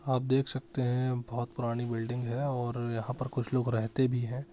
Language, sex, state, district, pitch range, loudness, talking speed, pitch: Hindi, male, Bihar, Jahanabad, 120-130 Hz, -32 LUFS, 210 wpm, 125 Hz